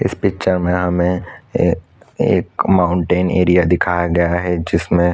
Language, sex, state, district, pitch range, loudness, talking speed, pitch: Hindi, male, Chhattisgarh, Korba, 85-90 Hz, -16 LUFS, 140 wpm, 90 Hz